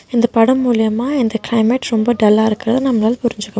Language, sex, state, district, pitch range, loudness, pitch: Tamil, female, Tamil Nadu, Nilgiris, 220-245 Hz, -15 LUFS, 230 Hz